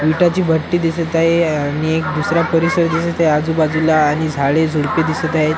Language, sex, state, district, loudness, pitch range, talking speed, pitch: Marathi, male, Maharashtra, Washim, -16 LUFS, 155-165 Hz, 170 wpm, 160 Hz